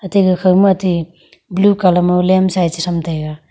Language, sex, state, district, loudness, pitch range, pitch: Wancho, female, Arunachal Pradesh, Longding, -14 LUFS, 170-190 Hz, 180 Hz